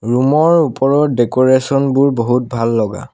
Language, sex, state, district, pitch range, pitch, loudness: Assamese, male, Assam, Sonitpur, 120-140 Hz, 130 Hz, -14 LUFS